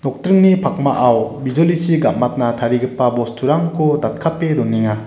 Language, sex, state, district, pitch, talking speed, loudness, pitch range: Garo, male, Meghalaya, West Garo Hills, 135 Hz, 85 wpm, -16 LUFS, 120-165 Hz